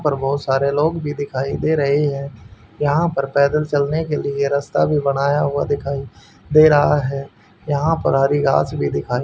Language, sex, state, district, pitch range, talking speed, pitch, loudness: Hindi, male, Haryana, Rohtak, 135-150 Hz, 190 wpm, 140 Hz, -18 LUFS